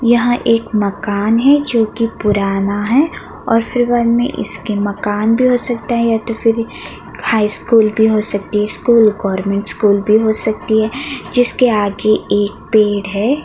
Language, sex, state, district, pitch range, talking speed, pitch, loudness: Hindi, female, Bihar, Madhepura, 205-240 Hz, 160 wpm, 220 Hz, -15 LUFS